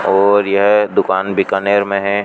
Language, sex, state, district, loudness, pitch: Hindi, male, Rajasthan, Bikaner, -14 LUFS, 100 Hz